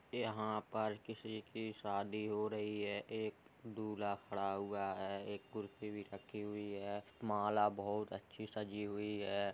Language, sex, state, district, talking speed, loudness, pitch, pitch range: Hindi, male, Uttar Pradesh, Hamirpur, 155 wpm, -43 LUFS, 105 Hz, 100-110 Hz